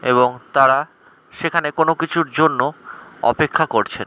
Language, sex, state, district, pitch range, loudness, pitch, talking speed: Bengali, male, West Bengal, Kolkata, 130-165 Hz, -18 LUFS, 150 Hz, 120 wpm